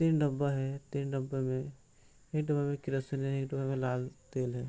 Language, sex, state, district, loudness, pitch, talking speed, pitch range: Hindi, male, Bihar, Gopalganj, -34 LUFS, 135 Hz, 205 wpm, 130-140 Hz